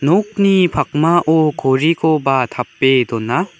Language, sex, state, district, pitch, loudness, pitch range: Garo, male, Meghalaya, West Garo Hills, 155 Hz, -15 LUFS, 135-175 Hz